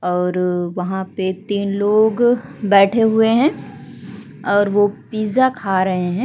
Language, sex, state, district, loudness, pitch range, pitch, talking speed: Hindi, female, Uttarakhand, Tehri Garhwal, -17 LUFS, 185-220 Hz, 205 Hz, 135 wpm